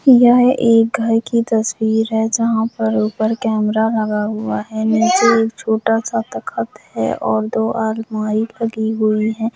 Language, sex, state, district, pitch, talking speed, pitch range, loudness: Hindi, female, Jharkhand, Jamtara, 220 Hz, 150 wpm, 220-230 Hz, -17 LUFS